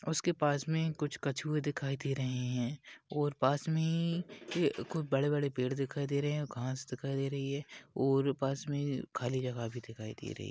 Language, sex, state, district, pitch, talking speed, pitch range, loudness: Hindi, male, Maharashtra, Pune, 140 Hz, 205 wpm, 130-150 Hz, -35 LUFS